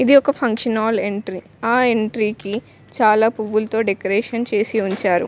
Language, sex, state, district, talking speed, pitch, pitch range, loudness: Telugu, female, Telangana, Mahabubabad, 150 wpm, 220 Hz, 205-230 Hz, -19 LUFS